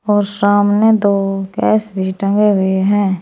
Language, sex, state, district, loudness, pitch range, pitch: Hindi, female, Uttar Pradesh, Saharanpur, -14 LUFS, 195-205 Hz, 205 Hz